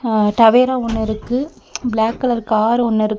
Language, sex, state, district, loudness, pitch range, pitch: Tamil, female, Tamil Nadu, Nilgiris, -16 LUFS, 220-245 Hz, 230 Hz